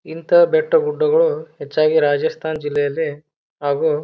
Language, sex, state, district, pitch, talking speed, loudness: Kannada, male, Karnataka, Bijapur, 160 Hz, 120 wpm, -18 LUFS